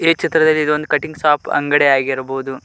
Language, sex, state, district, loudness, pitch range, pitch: Kannada, male, Karnataka, Koppal, -16 LUFS, 135-155 Hz, 150 Hz